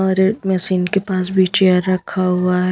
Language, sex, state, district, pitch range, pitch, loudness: Hindi, female, Punjab, Pathankot, 180-190 Hz, 185 Hz, -16 LUFS